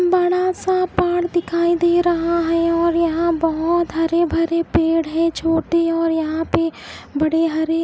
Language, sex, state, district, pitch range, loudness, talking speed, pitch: Hindi, female, Odisha, Khordha, 330-345 Hz, -18 LUFS, 155 wpm, 335 Hz